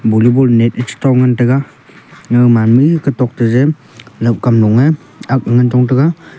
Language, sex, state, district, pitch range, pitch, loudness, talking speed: Wancho, male, Arunachal Pradesh, Longding, 120-135 Hz, 125 Hz, -12 LUFS, 180 wpm